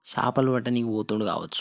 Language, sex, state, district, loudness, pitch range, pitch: Telugu, male, Telangana, Karimnagar, -26 LUFS, 105-125 Hz, 120 Hz